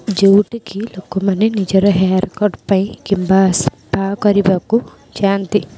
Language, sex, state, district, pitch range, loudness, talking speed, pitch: Odia, female, Odisha, Khordha, 190-205 Hz, -15 LUFS, 125 wpm, 195 Hz